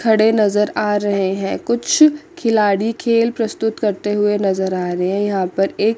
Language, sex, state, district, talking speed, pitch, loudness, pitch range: Hindi, female, Chandigarh, Chandigarh, 180 wpm, 210 Hz, -17 LUFS, 195-225 Hz